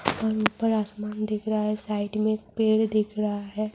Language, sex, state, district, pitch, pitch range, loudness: Urdu, female, Bihar, Saharsa, 215 Hz, 210-215 Hz, -26 LUFS